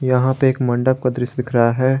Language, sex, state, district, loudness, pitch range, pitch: Hindi, male, Jharkhand, Garhwa, -18 LUFS, 125-130 Hz, 125 Hz